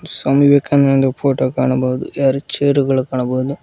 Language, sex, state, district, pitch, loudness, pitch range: Kannada, male, Karnataka, Koppal, 135 Hz, -15 LUFS, 130-140 Hz